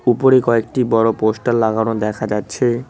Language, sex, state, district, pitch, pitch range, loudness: Bengali, male, West Bengal, Cooch Behar, 115 Hz, 110-120 Hz, -17 LUFS